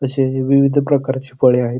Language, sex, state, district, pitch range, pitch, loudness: Marathi, male, Maharashtra, Pune, 130-140 Hz, 135 Hz, -16 LUFS